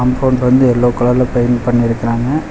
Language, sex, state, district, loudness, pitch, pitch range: Tamil, male, Tamil Nadu, Chennai, -13 LUFS, 125 Hz, 120-125 Hz